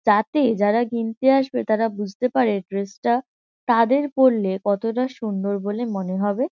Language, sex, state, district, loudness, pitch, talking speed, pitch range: Bengali, female, West Bengal, Kolkata, -21 LUFS, 225 Hz, 145 wpm, 205-255 Hz